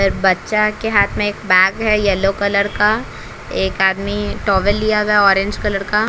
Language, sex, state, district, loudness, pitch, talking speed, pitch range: Hindi, female, Bihar, Patna, -16 LUFS, 205 Hz, 185 wpm, 195-210 Hz